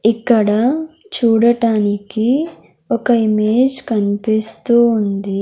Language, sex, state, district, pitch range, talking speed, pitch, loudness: Telugu, female, Andhra Pradesh, Sri Satya Sai, 215-240 Hz, 65 wpm, 230 Hz, -15 LUFS